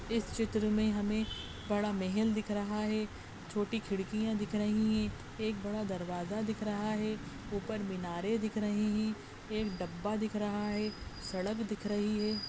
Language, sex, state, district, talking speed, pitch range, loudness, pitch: Hindi, female, Chhattisgarh, Bastar, 165 wpm, 205-215 Hz, -35 LUFS, 210 Hz